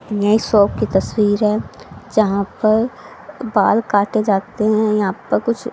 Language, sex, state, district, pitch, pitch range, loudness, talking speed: Hindi, female, Haryana, Charkhi Dadri, 210 Hz, 205-220 Hz, -17 LUFS, 145 wpm